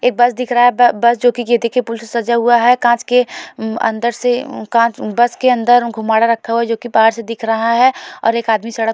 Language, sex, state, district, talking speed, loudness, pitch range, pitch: Hindi, female, Goa, North and South Goa, 280 wpm, -14 LUFS, 230-245 Hz, 235 Hz